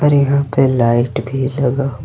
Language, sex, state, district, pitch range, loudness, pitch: Hindi, male, Jharkhand, Ranchi, 125-140 Hz, -15 LUFS, 135 Hz